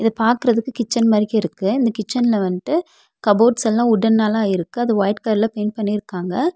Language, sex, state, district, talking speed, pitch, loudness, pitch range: Tamil, female, Tamil Nadu, Nilgiris, 145 wpm, 220 Hz, -18 LUFS, 210-235 Hz